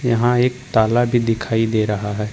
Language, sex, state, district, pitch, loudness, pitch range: Hindi, male, Jharkhand, Ranchi, 115 Hz, -18 LUFS, 110-120 Hz